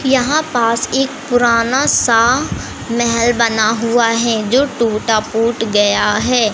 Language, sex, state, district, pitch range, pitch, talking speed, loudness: Hindi, female, Madhya Pradesh, Umaria, 225-250 Hz, 235 Hz, 130 wpm, -14 LUFS